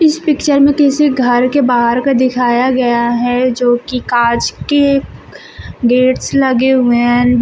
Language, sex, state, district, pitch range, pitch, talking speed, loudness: Hindi, female, Uttar Pradesh, Shamli, 245-275 Hz, 250 Hz, 155 wpm, -12 LUFS